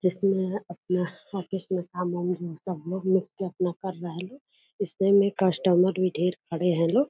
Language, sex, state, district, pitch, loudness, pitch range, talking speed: Angika, female, Bihar, Purnia, 185 Hz, -27 LUFS, 180-195 Hz, 185 wpm